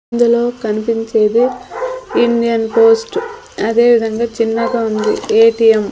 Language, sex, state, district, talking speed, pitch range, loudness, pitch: Telugu, female, Andhra Pradesh, Sri Satya Sai, 100 wpm, 225-250 Hz, -14 LUFS, 235 Hz